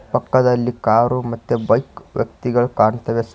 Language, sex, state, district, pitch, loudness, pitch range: Kannada, male, Karnataka, Koppal, 120 Hz, -18 LUFS, 115-125 Hz